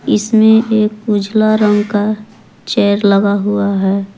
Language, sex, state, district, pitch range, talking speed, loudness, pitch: Hindi, female, Jharkhand, Palamu, 200-215 Hz, 130 wpm, -13 LUFS, 205 Hz